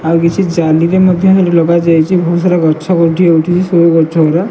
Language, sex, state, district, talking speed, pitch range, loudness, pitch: Odia, male, Odisha, Malkangiri, 175 wpm, 165-180 Hz, -10 LUFS, 170 Hz